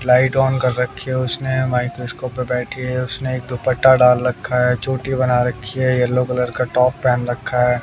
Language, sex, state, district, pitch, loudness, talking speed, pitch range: Hindi, male, Haryana, Jhajjar, 125 Hz, -18 LUFS, 205 wpm, 125-130 Hz